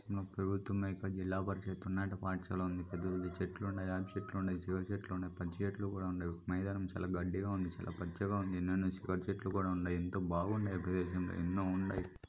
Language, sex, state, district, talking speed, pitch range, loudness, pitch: Telugu, female, Andhra Pradesh, Srikakulam, 145 wpm, 90-95 Hz, -39 LUFS, 95 Hz